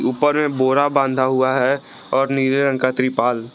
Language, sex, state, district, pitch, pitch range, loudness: Hindi, male, Jharkhand, Garhwa, 130 Hz, 130-140 Hz, -18 LUFS